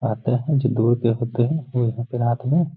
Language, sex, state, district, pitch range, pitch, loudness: Hindi, male, Bihar, Gaya, 120-135 Hz, 125 Hz, -21 LUFS